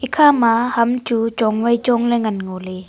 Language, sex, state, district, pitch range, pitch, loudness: Wancho, female, Arunachal Pradesh, Longding, 220-245 Hz, 235 Hz, -17 LUFS